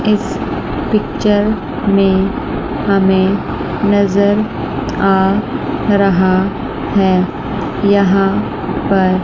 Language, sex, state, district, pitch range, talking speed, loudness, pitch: Hindi, female, Chandigarh, Chandigarh, 190-205 Hz, 70 wpm, -14 LUFS, 200 Hz